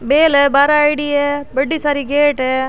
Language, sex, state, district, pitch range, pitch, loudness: Rajasthani, female, Rajasthan, Churu, 275-295 Hz, 285 Hz, -14 LUFS